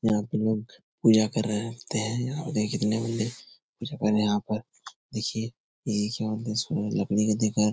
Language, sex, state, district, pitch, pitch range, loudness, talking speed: Hindi, male, Bihar, Jahanabad, 110 Hz, 105-115 Hz, -27 LUFS, 210 wpm